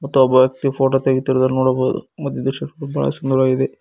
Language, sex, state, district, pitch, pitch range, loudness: Kannada, male, Karnataka, Koppal, 130 Hz, 130-135 Hz, -18 LUFS